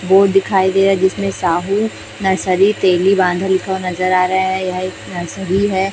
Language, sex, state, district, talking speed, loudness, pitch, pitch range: Hindi, female, Chhattisgarh, Raipur, 180 wpm, -15 LUFS, 190 Hz, 185-195 Hz